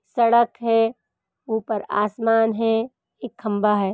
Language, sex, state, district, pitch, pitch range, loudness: Hindi, female, Uttar Pradesh, Hamirpur, 225 Hz, 210-230 Hz, -21 LUFS